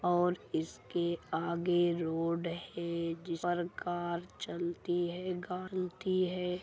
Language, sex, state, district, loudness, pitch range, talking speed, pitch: Hindi, male, Bihar, Madhepura, -35 LUFS, 170-180 Hz, 110 wpm, 175 Hz